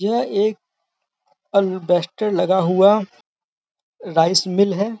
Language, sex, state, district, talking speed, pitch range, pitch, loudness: Hindi, male, Uttar Pradesh, Gorakhpur, 95 wpm, 180-205 Hz, 190 Hz, -18 LUFS